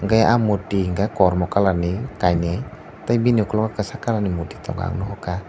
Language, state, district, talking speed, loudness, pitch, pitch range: Kokborok, Tripura, Dhalai, 220 wpm, -21 LUFS, 100 Hz, 90-110 Hz